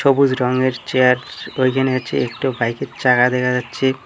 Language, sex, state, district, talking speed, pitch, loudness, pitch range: Bengali, male, West Bengal, Cooch Behar, 150 wpm, 130 Hz, -18 LUFS, 125-130 Hz